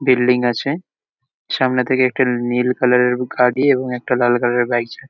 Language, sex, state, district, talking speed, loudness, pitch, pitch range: Bengali, male, West Bengal, Kolkata, 200 wpm, -17 LUFS, 125 Hz, 125-130 Hz